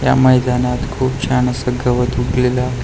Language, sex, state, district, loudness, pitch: Marathi, male, Maharashtra, Pune, -16 LUFS, 125 Hz